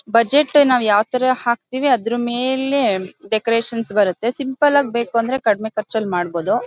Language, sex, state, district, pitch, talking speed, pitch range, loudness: Kannada, female, Karnataka, Mysore, 235 Hz, 145 wpm, 220-265 Hz, -18 LUFS